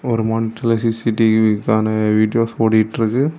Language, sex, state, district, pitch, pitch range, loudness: Tamil, male, Tamil Nadu, Kanyakumari, 110 Hz, 110-115 Hz, -17 LUFS